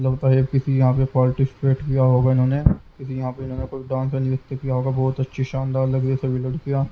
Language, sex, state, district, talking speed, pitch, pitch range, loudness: Hindi, male, Haryana, Jhajjar, 225 wpm, 130 Hz, 130-135 Hz, -21 LUFS